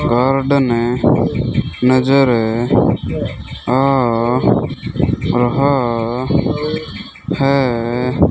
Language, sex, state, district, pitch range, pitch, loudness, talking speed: Hindi, male, Rajasthan, Bikaner, 120-135 Hz, 125 Hz, -16 LUFS, 35 wpm